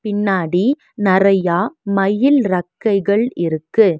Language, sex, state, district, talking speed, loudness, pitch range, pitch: Tamil, female, Tamil Nadu, Nilgiris, 75 wpm, -16 LUFS, 180-220 Hz, 200 Hz